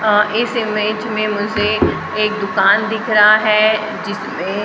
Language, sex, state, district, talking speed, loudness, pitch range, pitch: Hindi, female, Maharashtra, Gondia, 140 wpm, -15 LUFS, 210-220 Hz, 215 Hz